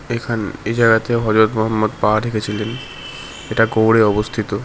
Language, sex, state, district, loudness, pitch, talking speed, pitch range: Bengali, male, West Bengal, Malda, -17 LUFS, 110 Hz, 130 wpm, 110-115 Hz